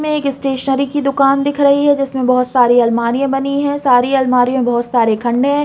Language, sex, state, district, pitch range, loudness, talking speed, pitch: Hindi, female, Chhattisgarh, Balrampur, 245-280 Hz, -14 LUFS, 200 wpm, 270 Hz